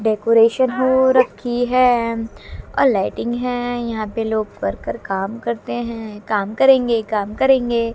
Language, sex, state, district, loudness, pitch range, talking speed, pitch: Hindi, female, Haryana, Jhajjar, -18 LUFS, 220-245 Hz, 135 wpm, 230 Hz